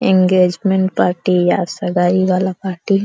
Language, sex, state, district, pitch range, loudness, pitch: Bhojpuri, female, Uttar Pradesh, Deoria, 180-190 Hz, -15 LUFS, 185 Hz